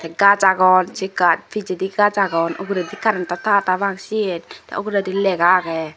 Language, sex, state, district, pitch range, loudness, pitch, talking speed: Chakma, female, Tripura, Dhalai, 180-200 Hz, -18 LUFS, 190 Hz, 170 wpm